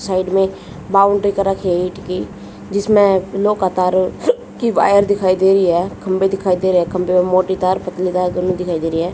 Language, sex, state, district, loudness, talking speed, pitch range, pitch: Hindi, female, Haryana, Jhajjar, -16 LUFS, 205 wpm, 180-195 Hz, 185 Hz